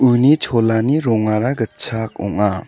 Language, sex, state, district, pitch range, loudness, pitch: Garo, male, Meghalaya, South Garo Hills, 110-130 Hz, -17 LUFS, 115 Hz